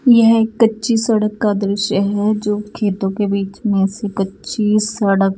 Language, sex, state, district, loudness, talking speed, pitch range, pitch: Hindi, male, Odisha, Nuapada, -17 LUFS, 165 wpm, 200-220 Hz, 210 Hz